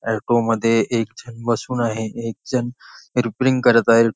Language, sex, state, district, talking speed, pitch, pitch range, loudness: Marathi, male, Maharashtra, Nagpur, 145 wpm, 115 Hz, 115-120 Hz, -20 LUFS